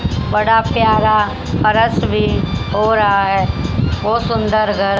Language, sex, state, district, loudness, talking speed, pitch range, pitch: Hindi, female, Haryana, Rohtak, -15 LUFS, 120 wpm, 200-215 Hz, 210 Hz